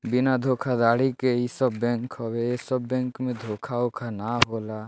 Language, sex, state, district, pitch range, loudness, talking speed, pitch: Bhojpuri, male, Bihar, Muzaffarpur, 115-130 Hz, -26 LUFS, 185 wpm, 120 Hz